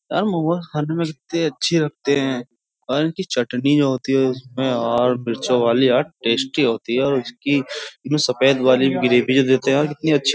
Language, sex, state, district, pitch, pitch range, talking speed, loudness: Hindi, male, Uttar Pradesh, Jyotiba Phule Nagar, 135 Hz, 125-150 Hz, 205 wpm, -19 LUFS